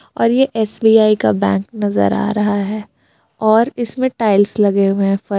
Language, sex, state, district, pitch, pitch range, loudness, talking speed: Hindi, female, Jharkhand, Palamu, 205 Hz, 195-220 Hz, -15 LUFS, 180 wpm